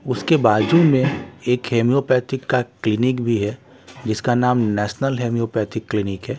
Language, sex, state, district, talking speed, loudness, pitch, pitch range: Hindi, male, Bihar, West Champaran, 140 wpm, -19 LUFS, 125 Hz, 115-130 Hz